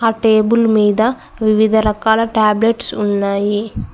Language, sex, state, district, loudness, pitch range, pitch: Telugu, female, Telangana, Mahabubabad, -14 LUFS, 210-225 Hz, 220 Hz